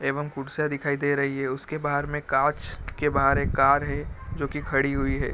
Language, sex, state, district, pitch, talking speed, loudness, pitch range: Hindi, male, Bihar, Gopalganj, 140 Hz, 235 wpm, -25 LUFS, 135-145 Hz